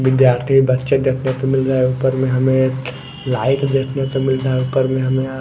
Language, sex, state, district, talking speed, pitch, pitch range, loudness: Hindi, male, Maharashtra, Gondia, 245 wpm, 130 Hz, 130-135 Hz, -17 LUFS